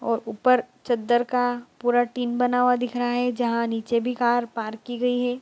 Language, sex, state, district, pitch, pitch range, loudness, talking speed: Hindi, female, Bihar, Bhagalpur, 245 Hz, 235-245 Hz, -24 LUFS, 210 wpm